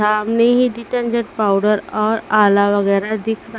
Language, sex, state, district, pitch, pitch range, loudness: Hindi, female, Haryana, Rohtak, 215 Hz, 210-230 Hz, -16 LUFS